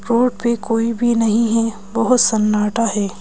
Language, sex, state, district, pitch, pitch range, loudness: Hindi, female, Madhya Pradesh, Bhopal, 230 Hz, 215-235 Hz, -17 LUFS